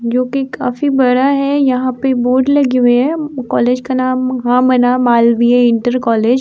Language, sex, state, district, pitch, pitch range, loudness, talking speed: Hindi, female, Uttar Pradesh, Muzaffarnagar, 255 Hz, 245-265 Hz, -13 LUFS, 180 wpm